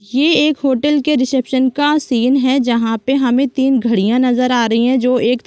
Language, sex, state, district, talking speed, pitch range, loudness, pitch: Hindi, female, Chhattisgarh, Rajnandgaon, 210 wpm, 245-270 Hz, -14 LUFS, 260 Hz